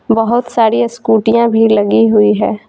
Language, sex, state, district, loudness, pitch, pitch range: Hindi, female, Bihar, Patna, -11 LUFS, 225 Hz, 215-235 Hz